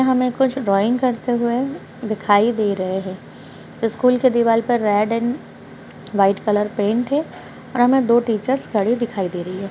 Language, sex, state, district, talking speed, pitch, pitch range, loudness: Hindi, female, Uttar Pradesh, Etah, 180 wpm, 230 Hz, 205-250 Hz, -19 LUFS